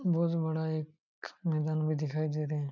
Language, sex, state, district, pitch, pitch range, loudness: Hindi, male, Jharkhand, Jamtara, 155 Hz, 150-160 Hz, -32 LUFS